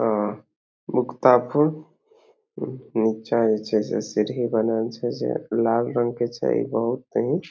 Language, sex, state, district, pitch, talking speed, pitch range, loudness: Maithili, male, Bihar, Samastipur, 115 Hz, 105 wpm, 110-125 Hz, -23 LUFS